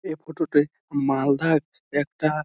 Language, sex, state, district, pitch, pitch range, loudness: Bengali, male, West Bengal, Malda, 150 Hz, 140-155 Hz, -24 LUFS